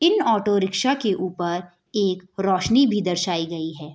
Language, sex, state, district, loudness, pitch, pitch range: Hindi, female, Bihar, Bhagalpur, -22 LUFS, 190 Hz, 175-210 Hz